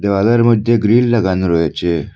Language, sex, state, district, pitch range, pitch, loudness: Bengali, male, Assam, Hailakandi, 85-115 Hz, 105 Hz, -14 LUFS